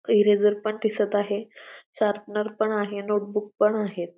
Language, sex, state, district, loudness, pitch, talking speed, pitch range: Marathi, female, Maharashtra, Pune, -25 LUFS, 210 Hz, 160 wpm, 205-215 Hz